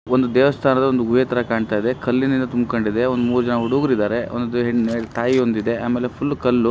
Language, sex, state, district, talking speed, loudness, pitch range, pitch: Kannada, male, Karnataka, Raichur, 195 wpm, -19 LUFS, 115-130 Hz, 120 Hz